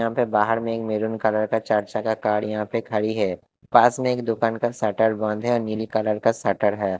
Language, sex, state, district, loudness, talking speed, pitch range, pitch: Hindi, male, Haryana, Jhajjar, -22 LUFS, 250 wpm, 105-115 Hz, 110 Hz